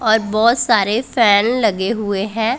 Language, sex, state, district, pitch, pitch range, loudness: Hindi, female, Punjab, Pathankot, 220 Hz, 205-235 Hz, -15 LUFS